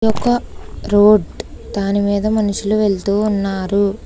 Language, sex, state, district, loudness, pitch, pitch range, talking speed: Telugu, female, Telangana, Hyderabad, -16 LUFS, 205 Hz, 200-215 Hz, 105 wpm